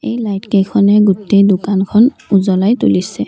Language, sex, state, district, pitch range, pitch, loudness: Assamese, female, Assam, Kamrup Metropolitan, 195-210 Hz, 200 Hz, -12 LUFS